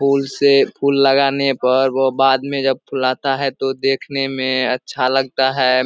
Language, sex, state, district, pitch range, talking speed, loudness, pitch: Hindi, male, Bihar, Supaul, 130-135 Hz, 175 wpm, -17 LUFS, 135 Hz